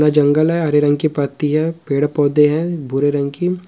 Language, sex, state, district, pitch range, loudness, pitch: Hindi, female, Bihar, Purnia, 145-160 Hz, -16 LUFS, 150 Hz